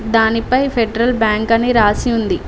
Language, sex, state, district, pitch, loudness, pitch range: Telugu, female, Telangana, Mahabubabad, 230 Hz, -15 LUFS, 220-240 Hz